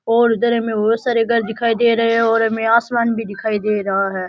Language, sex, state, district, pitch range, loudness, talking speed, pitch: Rajasthani, male, Rajasthan, Nagaur, 220-235 Hz, -17 LUFS, 240 wpm, 230 Hz